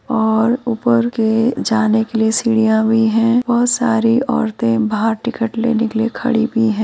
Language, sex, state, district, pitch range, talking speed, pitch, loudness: Hindi, female, Uttar Pradesh, Muzaffarnagar, 220-235 Hz, 185 wpm, 225 Hz, -16 LUFS